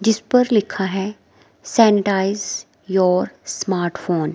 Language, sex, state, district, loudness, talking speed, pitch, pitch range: Hindi, female, Himachal Pradesh, Shimla, -19 LUFS, 110 wpm, 195 Hz, 185-215 Hz